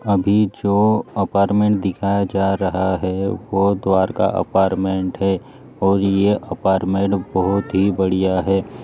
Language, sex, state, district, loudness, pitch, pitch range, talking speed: Hindi, male, Maharashtra, Chandrapur, -18 LUFS, 95 Hz, 95-100 Hz, 120 wpm